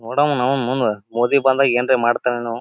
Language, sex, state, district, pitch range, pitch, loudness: Kannada, male, Karnataka, Gulbarga, 120-135 Hz, 125 Hz, -18 LUFS